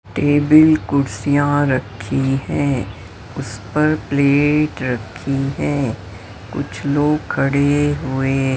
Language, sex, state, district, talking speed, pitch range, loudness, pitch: Hindi, female, Maharashtra, Mumbai Suburban, 90 wpm, 125-145 Hz, -17 LUFS, 135 Hz